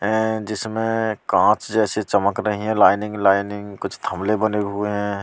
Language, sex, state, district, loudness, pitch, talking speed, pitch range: Hindi, male, Delhi, New Delhi, -20 LUFS, 105 Hz, 160 wpm, 100-110 Hz